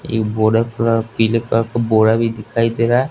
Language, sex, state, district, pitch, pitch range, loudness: Hindi, male, Bihar, West Champaran, 115 Hz, 110-115 Hz, -17 LUFS